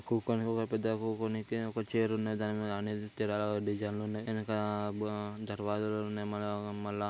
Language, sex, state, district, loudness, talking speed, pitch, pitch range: Telugu, male, Andhra Pradesh, Srikakulam, -35 LUFS, 150 wpm, 105 Hz, 105-110 Hz